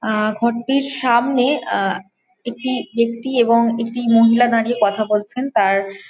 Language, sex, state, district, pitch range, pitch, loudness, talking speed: Bengali, female, West Bengal, Jhargram, 220-255 Hz, 235 Hz, -17 LUFS, 140 wpm